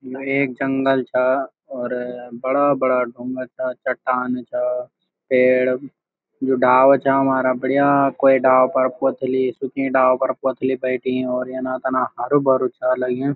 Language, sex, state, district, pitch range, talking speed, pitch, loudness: Garhwali, male, Uttarakhand, Uttarkashi, 125-135 Hz, 150 wpm, 130 Hz, -19 LUFS